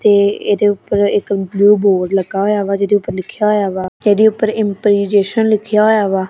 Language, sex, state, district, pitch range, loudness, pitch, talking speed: Punjabi, female, Punjab, Kapurthala, 195-210 Hz, -14 LUFS, 205 Hz, 190 wpm